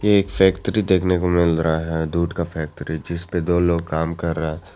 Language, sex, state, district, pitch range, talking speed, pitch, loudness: Hindi, male, Arunachal Pradesh, Lower Dibang Valley, 80-90 Hz, 225 wpm, 85 Hz, -20 LUFS